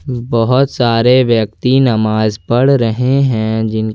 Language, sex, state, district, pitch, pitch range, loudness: Hindi, male, Jharkhand, Ranchi, 120 Hz, 110-130 Hz, -13 LUFS